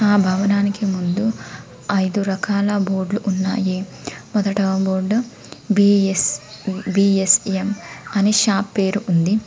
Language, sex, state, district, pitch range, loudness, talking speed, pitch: Telugu, female, Telangana, Komaram Bheem, 190-205 Hz, -19 LUFS, 95 wpm, 200 Hz